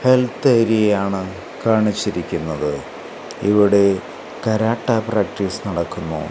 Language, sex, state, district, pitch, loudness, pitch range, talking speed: Malayalam, male, Kerala, Kasaragod, 105 Hz, -19 LUFS, 95-110 Hz, 65 wpm